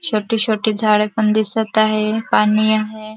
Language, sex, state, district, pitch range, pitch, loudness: Marathi, female, Maharashtra, Dhule, 215-220 Hz, 215 Hz, -16 LUFS